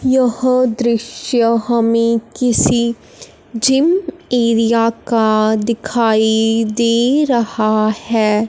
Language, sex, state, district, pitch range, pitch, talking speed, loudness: Hindi, male, Punjab, Fazilka, 225-245 Hz, 230 Hz, 80 wpm, -15 LUFS